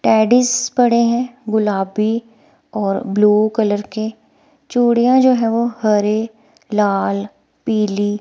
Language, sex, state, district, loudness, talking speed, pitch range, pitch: Hindi, female, Himachal Pradesh, Shimla, -16 LUFS, 100 wpm, 210-235 Hz, 220 Hz